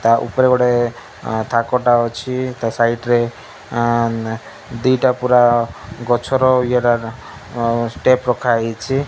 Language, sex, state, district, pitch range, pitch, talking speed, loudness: Odia, male, Odisha, Malkangiri, 115-125 Hz, 120 Hz, 145 wpm, -17 LUFS